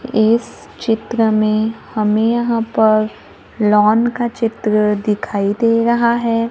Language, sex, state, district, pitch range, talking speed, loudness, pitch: Hindi, female, Maharashtra, Gondia, 215-230 Hz, 120 wpm, -16 LUFS, 225 Hz